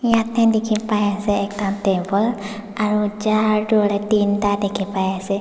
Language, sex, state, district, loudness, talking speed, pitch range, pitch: Nagamese, female, Nagaland, Dimapur, -19 LUFS, 120 wpm, 200-215 Hz, 210 Hz